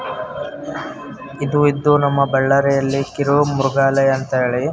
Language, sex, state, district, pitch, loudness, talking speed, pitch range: Kannada, male, Karnataka, Bellary, 140 Hz, -17 LUFS, 100 wpm, 135-140 Hz